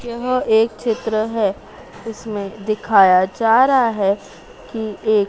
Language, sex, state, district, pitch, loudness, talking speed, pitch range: Hindi, female, Madhya Pradesh, Dhar, 220 Hz, -17 LUFS, 125 wpm, 205-230 Hz